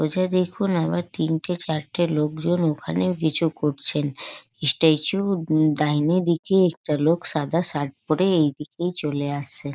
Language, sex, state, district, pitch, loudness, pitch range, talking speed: Bengali, female, West Bengal, North 24 Parganas, 160 Hz, -22 LUFS, 150-175 Hz, 135 wpm